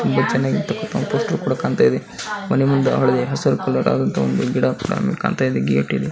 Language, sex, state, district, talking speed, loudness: Kannada, male, Karnataka, Bijapur, 80 wpm, -19 LUFS